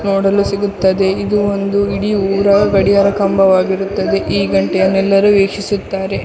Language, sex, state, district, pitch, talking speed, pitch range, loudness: Kannada, female, Karnataka, Dakshina Kannada, 195 Hz, 115 wpm, 195-200 Hz, -14 LUFS